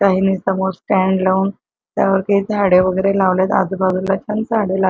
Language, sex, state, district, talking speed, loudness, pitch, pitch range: Marathi, female, Maharashtra, Chandrapur, 145 wpm, -16 LUFS, 190 Hz, 190-195 Hz